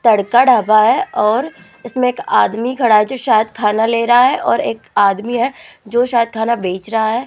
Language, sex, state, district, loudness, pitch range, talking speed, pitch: Hindi, female, Rajasthan, Jaipur, -14 LUFS, 215-245 Hz, 205 wpm, 230 Hz